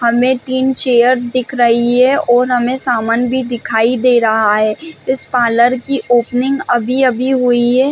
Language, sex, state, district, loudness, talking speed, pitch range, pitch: Hindi, female, Chhattisgarh, Bastar, -13 LUFS, 165 wpm, 240-260 Hz, 245 Hz